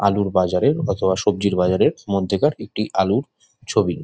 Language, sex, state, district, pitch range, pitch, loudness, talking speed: Bengali, male, West Bengal, Jhargram, 95-105 Hz, 100 Hz, -20 LUFS, 150 wpm